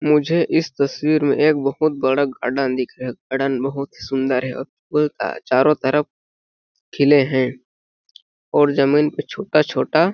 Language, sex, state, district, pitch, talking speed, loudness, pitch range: Hindi, male, Chhattisgarh, Balrampur, 140 Hz, 155 wpm, -19 LUFS, 130-150 Hz